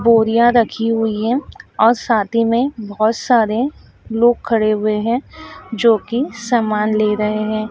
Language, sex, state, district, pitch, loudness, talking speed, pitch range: Hindi, female, Madhya Pradesh, Dhar, 225 Hz, -16 LUFS, 155 wpm, 215-235 Hz